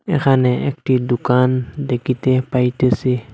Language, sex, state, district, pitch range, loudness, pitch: Bengali, male, Assam, Hailakandi, 125-135 Hz, -17 LUFS, 130 Hz